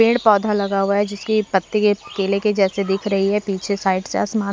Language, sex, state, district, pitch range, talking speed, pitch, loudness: Hindi, female, Haryana, Rohtak, 195-210 Hz, 240 wpm, 200 Hz, -19 LUFS